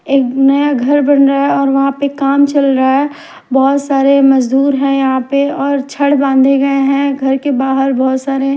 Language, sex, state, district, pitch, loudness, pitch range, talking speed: Hindi, female, Punjab, Kapurthala, 275 Hz, -12 LUFS, 270-280 Hz, 205 wpm